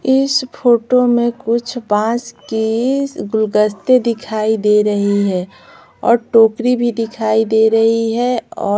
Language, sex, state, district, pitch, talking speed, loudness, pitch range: Hindi, female, Bihar, Patna, 230 Hz, 135 wpm, -15 LUFS, 215-245 Hz